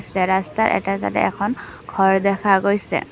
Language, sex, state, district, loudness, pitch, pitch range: Assamese, female, Assam, Kamrup Metropolitan, -19 LUFS, 195 Hz, 190-200 Hz